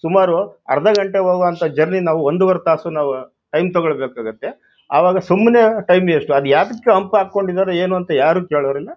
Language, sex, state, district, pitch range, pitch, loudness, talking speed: Kannada, male, Karnataka, Shimoga, 155-190 Hz, 180 Hz, -16 LUFS, 145 wpm